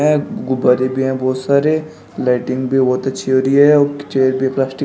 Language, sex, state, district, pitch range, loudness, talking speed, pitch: Hindi, male, Uttar Pradesh, Shamli, 130-140 Hz, -15 LUFS, 200 wpm, 130 Hz